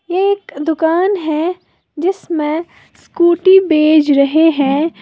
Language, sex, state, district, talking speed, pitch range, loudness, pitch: Hindi, female, Uttar Pradesh, Lalitpur, 110 wpm, 310-365 Hz, -13 LUFS, 325 Hz